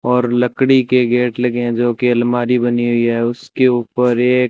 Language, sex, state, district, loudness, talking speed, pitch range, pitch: Hindi, male, Rajasthan, Bikaner, -15 LUFS, 200 wpm, 120-125 Hz, 120 Hz